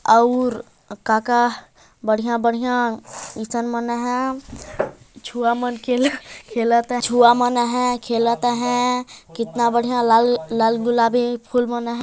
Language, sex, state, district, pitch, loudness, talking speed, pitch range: Hindi, female, Chhattisgarh, Jashpur, 240 Hz, -19 LUFS, 115 wpm, 235-245 Hz